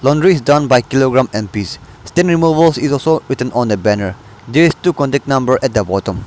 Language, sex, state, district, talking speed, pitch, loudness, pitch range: English, male, Nagaland, Dimapur, 220 wpm, 135 Hz, -14 LUFS, 105-155 Hz